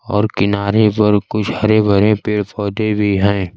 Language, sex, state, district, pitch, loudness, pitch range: Hindi, male, Bihar, Kaimur, 105 Hz, -15 LUFS, 100-105 Hz